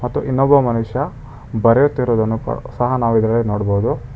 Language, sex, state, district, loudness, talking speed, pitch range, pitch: Kannada, male, Karnataka, Bangalore, -17 LUFS, 100 wpm, 115-135 Hz, 120 Hz